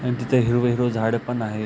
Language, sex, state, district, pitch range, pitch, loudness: Marathi, male, Maharashtra, Aurangabad, 115-125 Hz, 120 Hz, -22 LUFS